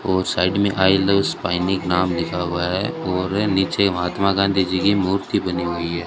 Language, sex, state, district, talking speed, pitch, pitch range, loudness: Hindi, male, Rajasthan, Bikaner, 190 wpm, 95 Hz, 90-100 Hz, -20 LUFS